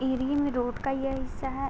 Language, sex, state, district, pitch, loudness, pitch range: Hindi, female, Uttar Pradesh, Gorakhpur, 270 Hz, -30 LUFS, 260-275 Hz